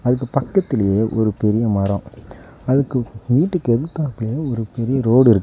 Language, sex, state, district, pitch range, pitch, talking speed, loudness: Tamil, male, Tamil Nadu, Nilgiris, 110-135 Hz, 120 Hz, 130 wpm, -19 LUFS